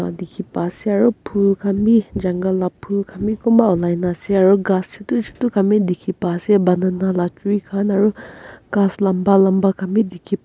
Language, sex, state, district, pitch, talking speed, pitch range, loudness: Nagamese, female, Nagaland, Kohima, 195 Hz, 195 wpm, 185-205 Hz, -18 LUFS